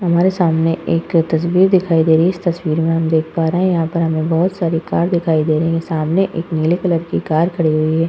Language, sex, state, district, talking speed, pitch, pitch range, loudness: Hindi, female, Uttar Pradesh, Hamirpur, 260 wpm, 165 Hz, 160-175 Hz, -16 LUFS